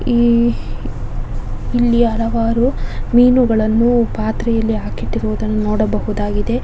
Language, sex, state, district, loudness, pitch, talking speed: Kannada, female, Karnataka, Dakshina Kannada, -16 LUFS, 215 Hz, 70 wpm